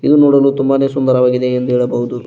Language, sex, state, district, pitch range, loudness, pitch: Kannada, male, Karnataka, Koppal, 125-140 Hz, -13 LUFS, 130 Hz